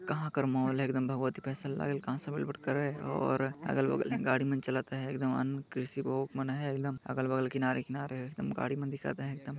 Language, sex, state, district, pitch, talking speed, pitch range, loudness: Chhattisgarhi, male, Chhattisgarh, Jashpur, 135 Hz, 175 wpm, 130-140 Hz, -34 LUFS